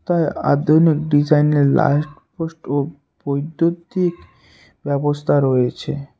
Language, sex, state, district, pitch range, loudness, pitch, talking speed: Bengali, male, West Bengal, Alipurduar, 145-165 Hz, -18 LUFS, 150 Hz, 95 wpm